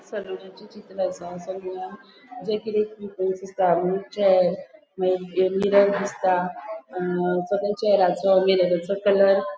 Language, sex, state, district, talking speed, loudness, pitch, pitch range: Konkani, female, Goa, North and South Goa, 80 wpm, -23 LUFS, 190 Hz, 185-205 Hz